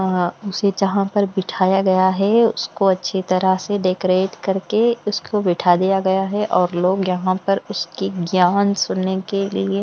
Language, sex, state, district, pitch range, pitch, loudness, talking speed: Hindi, female, Bihar, West Champaran, 185-200 Hz, 190 Hz, -19 LUFS, 160 wpm